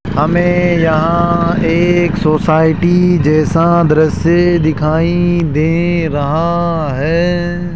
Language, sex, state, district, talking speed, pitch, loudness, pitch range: Hindi, male, Rajasthan, Jaipur, 75 wpm, 170 Hz, -12 LUFS, 155-175 Hz